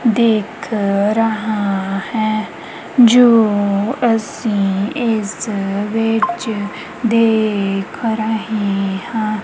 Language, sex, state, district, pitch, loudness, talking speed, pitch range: Punjabi, female, Punjab, Kapurthala, 215 Hz, -16 LUFS, 65 wpm, 205-225 Hz